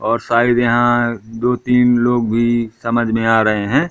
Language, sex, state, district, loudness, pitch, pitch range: Hindi, male, Madhya Pradesh, Katni, -15 LUFS, 120 Hz, 115-120 Hz